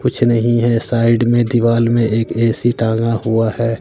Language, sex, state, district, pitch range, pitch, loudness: Hindi, male, Bihar, Katihar, 115-120 Hz, 115 Hz, -15 LUFS